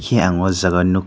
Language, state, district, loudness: Kokborok, Tripura, Dhalai, -17 LUFS